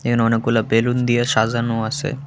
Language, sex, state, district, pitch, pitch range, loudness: Bengali, male, Tripura, West Tripura, 115 Hz, 115-120 Hz, -18 LUFS